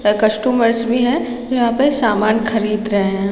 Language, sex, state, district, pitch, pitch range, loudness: Hindi, female, Chhattisgarh, Raigarh, 230 Hz, 215-245 Hz, -16 LUFS